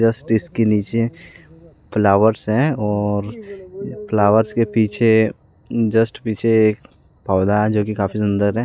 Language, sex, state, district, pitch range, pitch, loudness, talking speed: Hindi, male, Jharkhand, Deoghar, 105-115 Hz, 110 Hz, -18 LUFS, 125 wpm